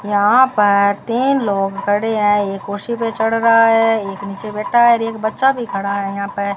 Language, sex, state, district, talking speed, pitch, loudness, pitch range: Hindi, female, Rajasthan, Bikaner, 210 wpm, 210 Hz, -16 LUFS, 200-230 Hz